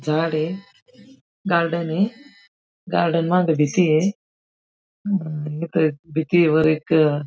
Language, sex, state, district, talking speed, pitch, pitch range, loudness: Marathi, female, Maharashtra, Aurangabad, 100 wpm, 170 Hz, 155-195 Hz, -20 LUFS